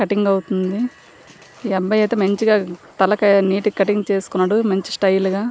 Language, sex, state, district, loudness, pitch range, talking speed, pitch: Telugu, female, Andhra Pradesh, Srikakulam, -18 LUFS, 190-210 Hz, 150 wpm, 200 Hz